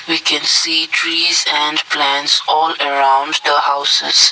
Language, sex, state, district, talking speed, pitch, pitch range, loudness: English, male, Assam, Kamrup Metropolitan, 140 wpm, 150 Hz, 140-160 Hz, -13 LUFS